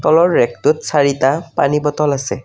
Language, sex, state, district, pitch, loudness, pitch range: Assamese, male, Assam, Kamrup Metropolitan, 150 Hz, -15 LUFS, 140-170 Hz